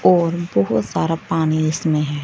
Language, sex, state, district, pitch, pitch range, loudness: Hindi, female, Punjab, Fazilka, 155 Hz, 145-170 Hz, -19 LUFS